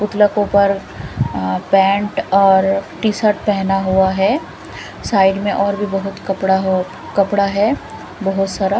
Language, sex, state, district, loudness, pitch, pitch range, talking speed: Hindi, female, Punjab, Fazilka, -16 LUFS, 195 Hz, 190-200 Hz, 145 wpm